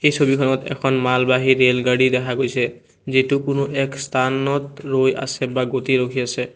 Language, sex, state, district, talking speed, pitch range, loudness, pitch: Assamese, male, Assam, Kamrup Metropolitan, 145 wpm, 130-135 Hz, -19 LUFS, 130 Hz